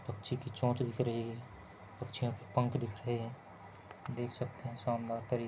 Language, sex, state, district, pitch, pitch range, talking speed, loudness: Hindi, male, Rajasthan, Churu, 120 Hz, 115-125 Hz, 185 wpm, -38 LUFS